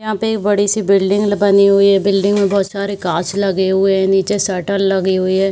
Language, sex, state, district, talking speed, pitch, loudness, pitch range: Hindi, female, Bihar, Saharsa, 270 wpm, 200 Hz, -14 LUFS, 190-200 Hz